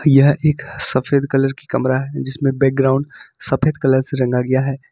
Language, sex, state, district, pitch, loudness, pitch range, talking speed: Hindi, male, Jharkhand, Ranchi, 135 Hz, -17 LUFS, 130-140 Hz, 185 wpm